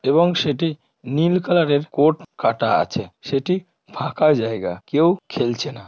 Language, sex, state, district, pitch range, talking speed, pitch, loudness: Bengali, female, West Bengal, Malda, 145-175 Hz, 145 wpm, 155 Hz, -20 LUFS